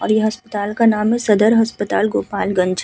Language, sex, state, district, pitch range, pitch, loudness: Hindi, female, Uttar Pradesh, Hamirpur, 205-225 Hz, 215 Hz, -17 LUFS